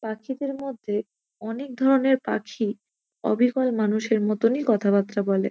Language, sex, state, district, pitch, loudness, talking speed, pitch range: Bengali, female, West Bengal, North 24 Parganas, 220 Hz, -24 LUFS, 110 wpm, 210-260 Hz